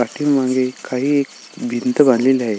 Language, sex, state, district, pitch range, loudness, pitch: Marathi, male, Maharashtra, Sindhudurg, 120-140 Hz, -17 LUFS, 130 Hz